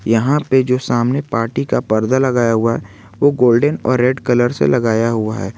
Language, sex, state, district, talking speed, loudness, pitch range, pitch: Hindi, male, Jharkhand, Garhwa, 205 wpm, -15 LUFS, 115-130 Hz, 120 Hz